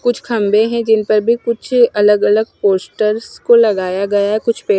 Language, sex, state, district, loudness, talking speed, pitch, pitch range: Hindi, female, Punjab, Kapurthala, -14 LUFS, 200 wpm, 220 Hz, 205-235 Hz